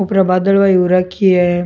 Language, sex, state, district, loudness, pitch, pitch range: Rajasthani, male, Rajasthan, Churu, -13 LUFS, 185 Hz, 180-195 Hz